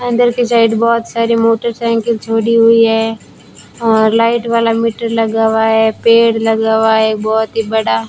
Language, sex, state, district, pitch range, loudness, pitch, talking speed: Hindi, female, Rajasthan, Bikaner, 220-230 Hz, -12 LUFS, 230 Hz, 180 wpm